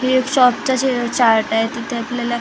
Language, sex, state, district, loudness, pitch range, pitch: Marathi, female, Maharashtra, Gondia, -17 LUFS, 235-255 Hz, 240 Hz